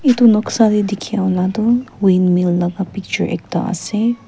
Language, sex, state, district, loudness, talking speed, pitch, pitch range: Nagamese, female, Nagaland, Kohima, -16 LUFS, 170 wpm, 205 Hz, 185-230 Hz